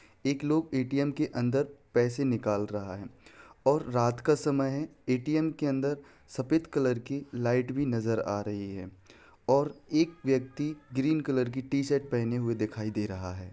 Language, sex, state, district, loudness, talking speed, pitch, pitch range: Hindi, male, Bihar, Jahanabad, -30 LUFS, 175 wpm, 130 Hz, 115-145 Hz